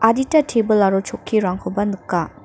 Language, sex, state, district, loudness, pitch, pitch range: Garo, female, Meghalaya, North Garo Hills, -19 LUFS, 205 Hz, 190-225 Hz